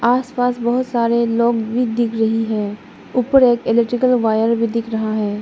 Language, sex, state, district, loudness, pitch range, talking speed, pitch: Hindi, female, Arunachal Pradesh, Lower Dibang Valley, -17 LUFS, 225-245 Hz, 175 wpm, 235 Hz